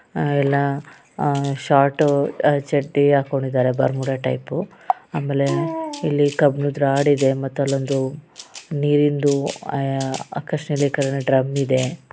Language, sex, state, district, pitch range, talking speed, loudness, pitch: Kannada, female, Karnataka, Raichur, 135-145 Hz, 95 wpm, -20 LUFS, 140 Hz